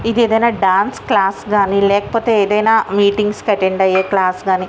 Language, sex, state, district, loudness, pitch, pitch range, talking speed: Telugu, female, Andhra Pradesh, Visakhapatnam, -14 LUFS, 200 Hz, 190-220 Hz, 165 wpm